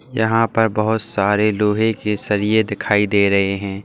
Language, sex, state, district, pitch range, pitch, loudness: Hindi, male, Uttar Pradesh, Saharanpur, 100-110 Hz, 105 Hz, -17 LUFS